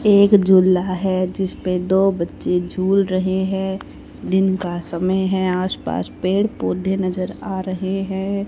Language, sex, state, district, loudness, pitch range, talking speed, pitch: Hindi, female, Haryana, Rohtak, -19 LUFS, 185-190 Hz, 150 wpm, 190 Hz